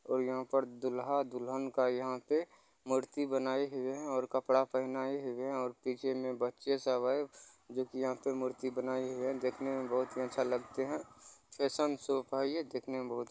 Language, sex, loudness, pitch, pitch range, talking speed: Maithili, male, -36 LUFS, 130 Hz, 130-135 Hz, 205 wpm